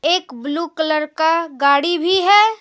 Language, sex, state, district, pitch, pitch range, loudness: Hindi, female, Jharkhand, Deoghar, 325 Hz, 300-350 Hz, -16 LUFS